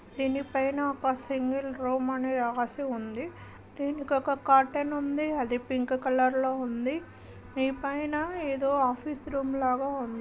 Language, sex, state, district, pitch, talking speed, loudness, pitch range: Telugu, female, Karnataka, Gulbarga, 270 Hz, 130 wpm, -29 LUFS, 255-280 Hz